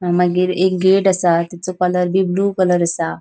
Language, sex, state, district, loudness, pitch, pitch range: Konkani, female, Goa, North and South Goa, -16 LUFS, 180 Hz, 175-185 Hz